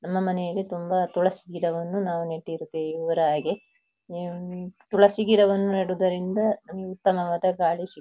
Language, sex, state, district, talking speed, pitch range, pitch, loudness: Kannada, female, Karnataka, Dakshina Kannada, 110 wpm, 170-190 Hz, 180 Hz, -25 LUFS